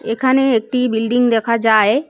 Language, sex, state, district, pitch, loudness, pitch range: Bengali, female, West Bengal, Cooch Behar, 235 Hz, -15 LUFS, 225-255 Hz